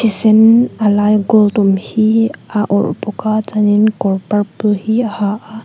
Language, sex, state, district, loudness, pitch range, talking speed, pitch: Mizo, female, Mizoram, Aizawl, -13 LUFS, 205-220 Hz, 190 wpm, 215 Hz